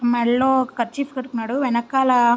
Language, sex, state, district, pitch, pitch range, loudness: Telugu, female, Andhra Pradesh, Visakhapatnam, 250 Hz, 235-265 Hz, -20 LUFS